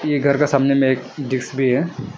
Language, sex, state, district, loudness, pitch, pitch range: Hindi, male, Arunachal Pradesh, Lower Dibang Valley, -18 LUFS, 135 Hz, 130-140 Hz